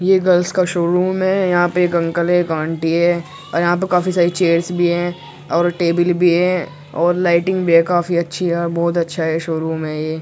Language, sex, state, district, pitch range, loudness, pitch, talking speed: Hindi, male, Uttar Pradesh, Muzaffarnagar, 170-180 Hz, -17 LUFS, 175 Hz, 235 wpm